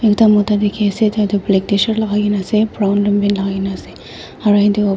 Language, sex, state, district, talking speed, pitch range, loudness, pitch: Nagamese, female, Nagaland, Dimapur, 240 wpm, 200-215 Hz, -15 LUFS, 205 Hz